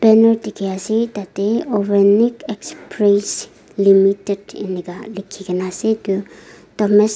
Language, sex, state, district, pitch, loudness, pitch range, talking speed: Nagamese, female, Nagaland, Dimapur, 205 Hz, -17 LUFS, 195-220 Hz, 90 wpm